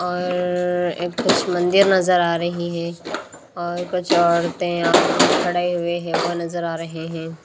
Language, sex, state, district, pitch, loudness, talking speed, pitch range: Hindi, female, Haryana, Rohtak, 175 Hz, -20 LUFS, 145 wpm, 170-180 Hz